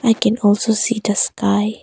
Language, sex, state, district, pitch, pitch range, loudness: English, female, Arunachal Pradesh, Longding, 220 Hz, 205-230 Hz, -17 LUFS